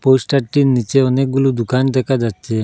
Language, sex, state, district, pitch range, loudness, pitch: Bengali, male, Assam, Hailakandi, 120-135 Hz, -16 LUFS, 130 Hz